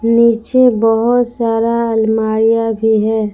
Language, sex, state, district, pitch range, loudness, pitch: Hindi, female, Jharkhand, Palamu, 220-235 Hz, -13 LUFS, 225 Hz